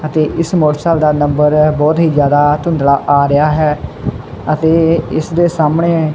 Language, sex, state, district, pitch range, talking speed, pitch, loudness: Punjabi, male, Punjab, Kapurthala, 150-165 Hz, 155 wpm, 155 Hz, -12 LUFS